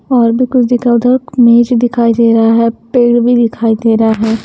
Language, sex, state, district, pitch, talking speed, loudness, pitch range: Hindi, female, Haryana, Charkhi Dadri, 235 Hz, 215 wpm, -10 LUFS, 230-245 Hz